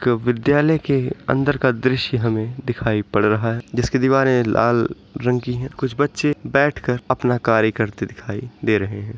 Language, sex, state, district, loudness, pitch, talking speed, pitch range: Hindi, male, Uttar Pradesh, Muzaffarnagar, -20 LUFS, 125 Hz, 185 wpm, 110-135 Hz